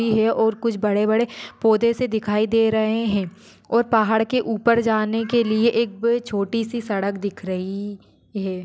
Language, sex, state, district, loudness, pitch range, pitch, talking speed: Hindi, female, Maharashtra, Sindhudurg, -21 LUFS, 205-230 Hz, 220 Hz, 160 wpm